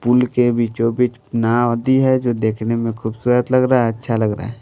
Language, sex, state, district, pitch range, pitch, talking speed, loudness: Hindi, male, Bihar, Patna, 115-125 Hz, 120 Hz, 220 wpm, -17 LUFS